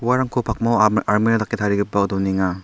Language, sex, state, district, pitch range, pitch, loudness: Garo, male, Meghalaya, South Garo Hills, 100-115 Hz, 105 Hz, -19 LUFS